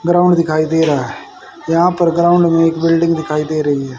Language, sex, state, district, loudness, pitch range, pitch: Hindi, male, Haryana, Charkhi Dadri, -14 LUFS, 155-170 Hz, 165 Hz